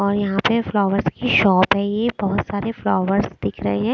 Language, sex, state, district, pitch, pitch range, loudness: Hindi, female, Chandigarh, Chandigarh, 200 Hz, 190-205 Hz, -19 LUFS